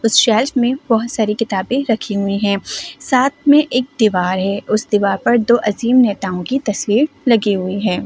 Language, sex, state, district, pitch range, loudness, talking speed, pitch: Hindi, female, Delhi, New Delhi, 200-250 Hz, -16 LUFS, 185 wpm, 220 Hz